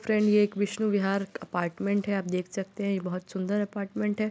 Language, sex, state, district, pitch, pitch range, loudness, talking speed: Hindi, female, Bihar, Muzaffarpur, 200 Hz, 190-210 Hz, -29 LUFS, 220 wpm